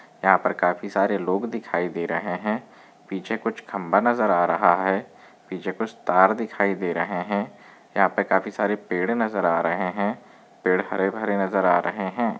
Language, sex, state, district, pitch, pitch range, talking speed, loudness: Hindi, male, Maharashtra, Chandrapur, 95 Hz, 90-105 Hz, 190 wpm, -23 LUFS